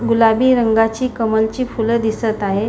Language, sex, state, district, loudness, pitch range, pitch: Marathi, female, Maharashtra, Pune, -16 LUFS, 220-240 Hz, 225 Hz